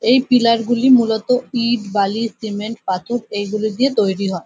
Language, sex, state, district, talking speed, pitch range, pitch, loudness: Bengali, female, West Bengal, North 24 Parganas, 160 wpm, 205-240 Hz, 225 Hz, -17 LUFS